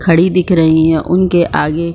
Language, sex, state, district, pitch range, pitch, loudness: Hindi, female, Jharkhand, Sahebganj, 160-180 Hz, 170 Hz, -12 LUFS